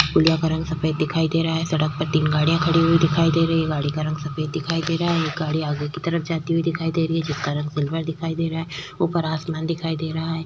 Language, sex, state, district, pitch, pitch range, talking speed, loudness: Hindi, female, Uttar Pradesh, Jyotiba Phule Nagar, 160 Hz, 155-165 Hz, 285 wpm, -22 LUFS